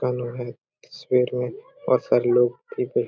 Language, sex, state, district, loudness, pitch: Hindi, male, Chhattisgarh, Korba, -23 LUFS, 125 Hz